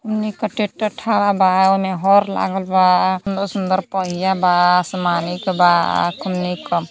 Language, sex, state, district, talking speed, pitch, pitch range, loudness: Hindi, female, Uttar Pradesh, Gorakhpur, 155 wpm, 190 Hz, 180-195 Hz, -17 LUFS